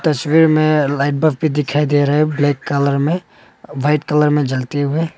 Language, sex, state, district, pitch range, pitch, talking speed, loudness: Hindi, male, Arunachal Pradesh, Papum Pare, 145-155 Hz, 150 Hz, 195 wpm, -16 LUFS